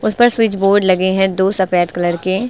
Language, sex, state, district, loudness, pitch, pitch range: Hindi, female, Uttar Pradesh, Lucknow, -14 LUFS, 190 Hz, 185-210 Hz